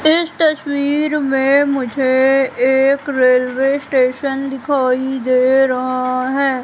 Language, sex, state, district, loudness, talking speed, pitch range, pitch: Hindi, female, Madhya Pradesh, Katni, -15 LUFS, 100 wpm, 255-280 Hz, 270 Hz